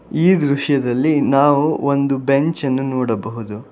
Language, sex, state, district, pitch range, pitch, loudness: Kannada, male, Karnataka, Bangalore, 130-145 Hz, 140 Hz, -17 LUFS